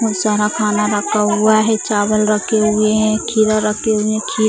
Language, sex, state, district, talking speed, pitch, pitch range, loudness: Hindi, female, Bihar, Sitamarhi, 215 wpm, 215 Hz, 210-215 Hz, -15 LUFS